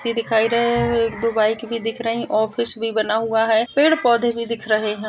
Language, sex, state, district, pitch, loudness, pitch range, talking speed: Hindi, female, Bihar, Jahanabad, 230 Hz, -19 LUFS, 220-235 Hz, 260 wpm